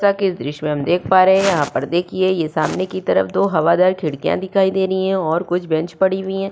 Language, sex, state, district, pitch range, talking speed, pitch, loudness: Hindi, female, Uttar Pradesh, Budaun, 160-190 Hz, 260 wpm, 185 Hz, -18 LUFS